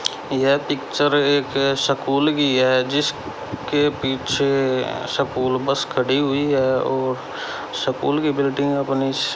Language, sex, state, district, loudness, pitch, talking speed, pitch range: Hindi, male, Haryana, Rohtak, -20 LUFS, 140 Hz, 115 wpm, 130-145 Hz